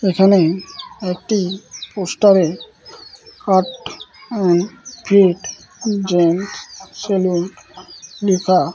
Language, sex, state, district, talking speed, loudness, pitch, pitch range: Bengali, male, West Bengal, Malda, 60 wpm, -17 LUFS, 190 Hz, 180-205 Hz